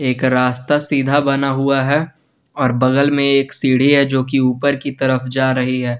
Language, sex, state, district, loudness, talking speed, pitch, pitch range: Hindi, male, Jharkhand, Garhwa, -16 LUFS, 200 wpm, 135 Hz, 130-140 Hz